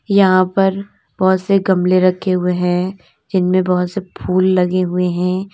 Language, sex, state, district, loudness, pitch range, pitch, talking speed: Hindi, female, Uttar Pradesh, Lalitpur, -16 LUFS, 180-190 Hz, 185 Hz, 160 wpm